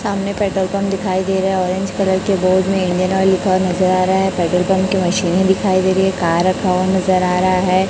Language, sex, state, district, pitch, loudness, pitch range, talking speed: Hindi, female, Chhattisgarh, Raipur, 190 Hz, -16 LUFS, 185-190 Hz, 265 wpm